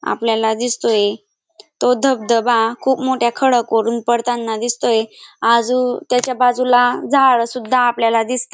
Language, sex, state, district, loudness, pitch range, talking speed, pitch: Marathi, female, Maharashtra, Dhule, -16 LUFS, 230-255 Hz, 110 wpm, 245 Hz